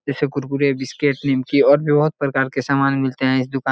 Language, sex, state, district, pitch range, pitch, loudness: Hindi, male, Bihar, Jahanabad, 135-140 Hz, 135 Hz, -18 LUFS